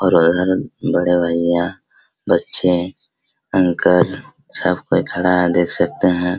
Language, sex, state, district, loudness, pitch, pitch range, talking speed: Hindi, male, Bihar, Araria, -17 LUFS, 90 Hz, 85-90 Hz, 120 wpm